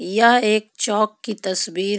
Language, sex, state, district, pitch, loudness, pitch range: Hindi, female, Jharkhand, Ranchi, 215 Hz, -19 LUFS, 205-220 Hz